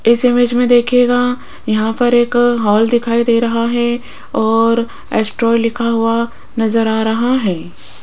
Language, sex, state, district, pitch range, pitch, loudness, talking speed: Hindi, female, Rajasthan, Jaipur, 225-240 Hz, 235 Hz, -14 LUFS, 135 wpm